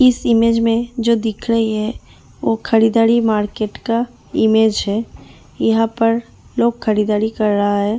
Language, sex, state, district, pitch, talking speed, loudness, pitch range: Hindi, female, Delhi, New Delhi, 225 Hz, 160 wpm, -17 LUFS, 215-230 Hz